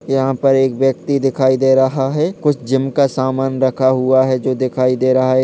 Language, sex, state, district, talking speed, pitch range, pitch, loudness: Hindi, male, Uttar Pradesh, Jalaun, 220 wpm, 130-135 Hz, 130 Hz, -15 LUFS